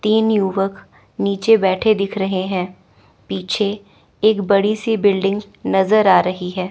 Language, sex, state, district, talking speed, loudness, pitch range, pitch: Hindi, female, Chandigarh, Chandigarh, 145 wpm, -17 LUFS, 190-210 Hz, 200 Hz